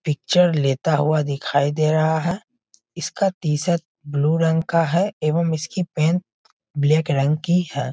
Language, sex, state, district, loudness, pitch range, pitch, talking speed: Hindi, male, Bihar, Sitamarhi, -20 LUFS, 150-170 Hz, 160 Hz, 150 wpm